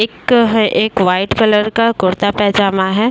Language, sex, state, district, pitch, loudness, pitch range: Hindi, female, Uttar Pradesh, Jyotiba Phule Nagar, 210 Hz, -13 LUFS, 195-225 Hz